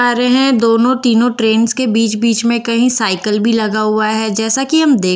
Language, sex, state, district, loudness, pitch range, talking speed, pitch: Hindi, female, Bihar, Katihar, -13 LUFS, 220-245 Hz, 235 wpm, 230 Hz